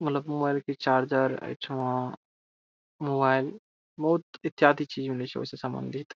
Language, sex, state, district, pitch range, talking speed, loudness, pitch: Maithili, male, Bihar, Saharsa, 130-145 Hz, 125 wpm, -28 LUFS, 135 Hz